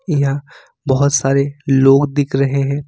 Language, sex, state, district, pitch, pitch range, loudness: Hindi, male, Jharkhand, Ranchi, 140 Hz, 135-145 Hz, -15 LUFS